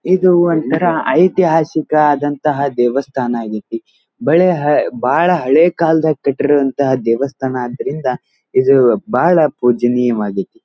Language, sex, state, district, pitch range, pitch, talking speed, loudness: Kannada, male, Karnataka, Dharwad, 125-160 Hz, 140 Hz, 90 wpm, -14 LUFS